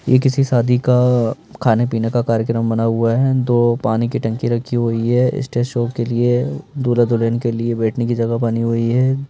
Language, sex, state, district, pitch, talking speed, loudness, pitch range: Hindi, male, Madhya Pradesh, Bhopal, 120 Hz, 205 wpm, -17 LUFS, 115-125 Hz